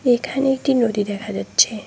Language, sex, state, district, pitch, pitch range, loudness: Bengali, female, West Bengal, Cooch Behar, 240 Hz, 210-265 Hz, -20 LUFS